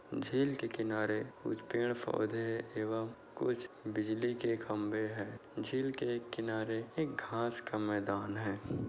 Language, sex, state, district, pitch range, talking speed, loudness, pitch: Hindi, male, Uttar Pradesh, Budaun, 105-120 Hz, 135 wpm, -37 LUFS, 110 Hz